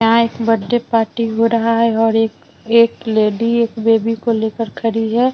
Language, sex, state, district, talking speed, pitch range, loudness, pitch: Hindi, female, Bihar, Vaishali, 190 wpm, 225-230 Hz, -16 LUFS, 230 Hz